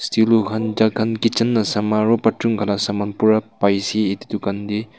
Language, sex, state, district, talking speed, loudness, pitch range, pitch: Nagamese, male, Nagaland, Kohima, 180 wpm, -19 LUFS, 105-110 Hz, 110 Hz